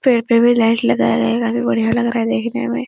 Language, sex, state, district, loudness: Hindi, female, Uttar Pradesh, Etah, -16 LUFS